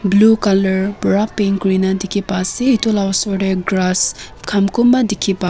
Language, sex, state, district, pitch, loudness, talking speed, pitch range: Nagamese, female, Nagaland, Kohima, 195 Hz, -16 LUFS, 185 wpm, 190-210 Hz